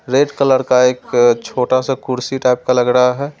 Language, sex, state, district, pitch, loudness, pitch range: Hindi, male, Delhi, New Delhi, 130 Hz, -15 LUFS, 125-135 Hz